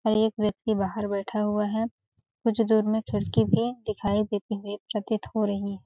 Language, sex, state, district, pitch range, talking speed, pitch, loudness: Hindi, female, Chhattisgarh, Balrampur, 205-220 Hz, 195 wpm, 210 Hz, -27 LUFS